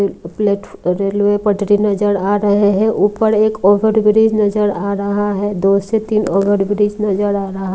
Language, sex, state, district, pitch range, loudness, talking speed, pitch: Hindi, female, Maharashtra, Mumbai Suburban, 200-210 Hz, -15 LUFS, 185 wpm, 205 Hz